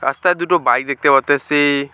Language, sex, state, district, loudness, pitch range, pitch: Bengali, male, West Bengal, Alipurduar, -15 LUFS, 140-160 Hz, 145 Hz